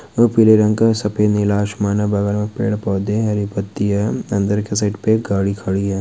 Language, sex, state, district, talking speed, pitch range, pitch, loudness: Hindi, male, Bihar, Saran, 200 wpm, 100-110 Hz, 105 Hz, -17 LUFS